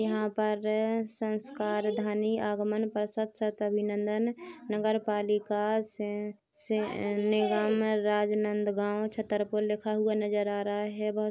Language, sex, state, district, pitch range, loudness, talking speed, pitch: Hindi, female, Chhattisgarh, Rajnandgaon, 210-215 Hz, -30 LUFS, 125 wpm, 210 Hz